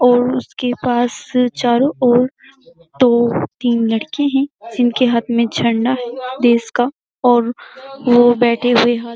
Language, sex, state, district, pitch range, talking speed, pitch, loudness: Hindi, female, Uttar Pradesh, Jyotiba Phule Nagar, 235-255 Hz, 140 wpm, 245 Hz, -16 LUFS